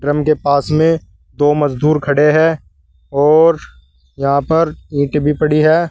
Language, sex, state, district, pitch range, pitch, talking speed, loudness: Hindi, male, Uttar Pradesh, Saharanpur, 140-155 Hz, 150 Hz, 150 wpm, -14 LUFS